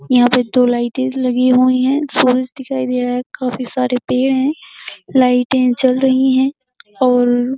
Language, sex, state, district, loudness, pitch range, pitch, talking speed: Hindi, female, Uttar Pradesh, Jyotiba Phule Nagar, -15 LUFS, 250-260 Hz, 255 Hz, 175 wpm